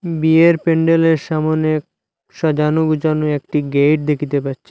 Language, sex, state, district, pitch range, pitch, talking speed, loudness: Bengali, male, Assam, Hailakandi, 150-160 Hz, 155 Hz, 115 wpm, -16 LUFS